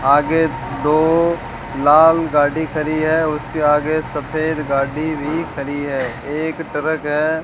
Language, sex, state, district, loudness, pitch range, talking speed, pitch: Hindi, male, Rajasthan, Bikaner, -18 LUFS, 145-160 Hz, 135 wpm, 150 Hz